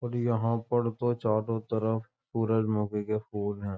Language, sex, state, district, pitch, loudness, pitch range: Hindi, male, Uttar Pradesh, Jyotiba Phule Nagar, 110 Hz, -30 LUFS, 105-115 Hz